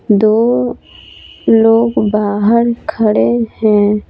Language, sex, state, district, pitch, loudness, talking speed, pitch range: Hindi, female, Bihar, Patna, 215 Hz, -12 LUFS, 75 wpm, 205-230 Hz